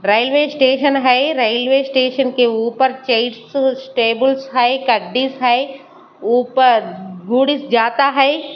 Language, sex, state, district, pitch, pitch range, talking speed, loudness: Hindi, female, Haryana, Charkhi Dadri, 260 Hz, 240-275 Hz, 110 wpm, -15 LUFS